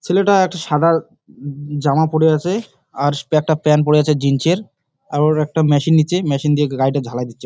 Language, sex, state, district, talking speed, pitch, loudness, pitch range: Bengali, male, West Bengal, Jalpaiguri, 200 wpm, 150 Hz, -16 LUFS, 145-165 Hz